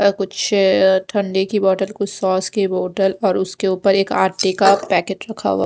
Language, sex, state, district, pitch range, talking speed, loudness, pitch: Hindi, female, Odisha, Khordha, 190-200 Hz, 180 wpm, -17 LUFS, 195 Hz